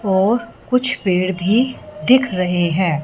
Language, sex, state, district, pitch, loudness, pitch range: Hindi, female, Punjab, Fazilka, 190 Hz, -17 LUFS, 180-245 Hz